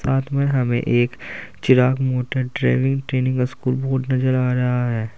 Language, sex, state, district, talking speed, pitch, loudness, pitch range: Hindi, male, Uttar Pradesh, Saharanpur, 160 wpm, 130 Hz, -20 LUFS, 125-130 Hz